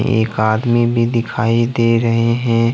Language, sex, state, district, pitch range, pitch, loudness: Hindi, male, Jharkhand, Ranchi, 115-120 Hz, 115 Hz, -15 LUFS